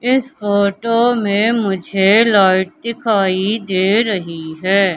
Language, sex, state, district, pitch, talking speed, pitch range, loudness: Hindi, male, Madhya Pradesh, Katni, 200 Hz, 110 wpm, 190-230 Hz, -15 LUFS